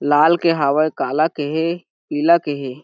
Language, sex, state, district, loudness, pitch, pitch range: Chhattisgarhi, male, Chhattisgarh, Jashpur, -18 LUFS, 155 Hz, 145-170 Hz